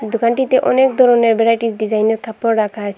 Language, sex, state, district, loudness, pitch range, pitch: Bengali, female, Assam, Hailakandi, -15 LUFS, 215-235 Hz, 230 Hz